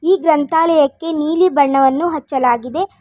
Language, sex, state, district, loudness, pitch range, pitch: Kannada, female, Karnataka, Bangalore, -15 LUFS, 275-330 Hz, 315 Hz